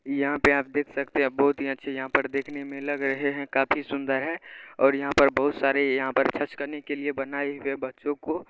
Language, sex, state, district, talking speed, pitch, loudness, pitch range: Hindi, male, Bihar, Araria, 240 wpm, 140 Hz, -26 LUFS, 135-145 Hz